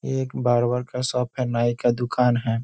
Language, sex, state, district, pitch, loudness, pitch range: Hindi, male, Bihar, Darbhanga, 125 Hz, -23 LUFS, 120-125 Hz